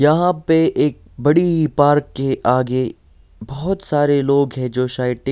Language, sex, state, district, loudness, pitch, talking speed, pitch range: Hindi, male, Bihar, Patna, -17 LUFS, 140 Hz, 160 wpm, 125-150 Hz